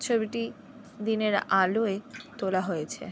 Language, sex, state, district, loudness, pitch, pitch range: Bengali, female, West Bengal, Jhargram, -28 LUFS, 215 Hz, 195-230 Hz